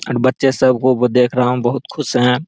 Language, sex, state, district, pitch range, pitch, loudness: Maithili, male, Bihar, Araria, 125-130 Hz, 125 Hz, -15 LUFS